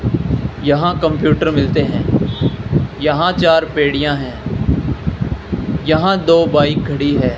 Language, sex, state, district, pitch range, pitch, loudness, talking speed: Hindi, male, Rajasthan, Bikaner, 145-165 Hz, 150 Hz, -16 LUFS, 105 wpm